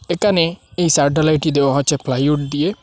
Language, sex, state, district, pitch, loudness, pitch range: Bengali, male, Assam, Hailakandi, 150 Hz, -17 LUFS, 140-170 Hz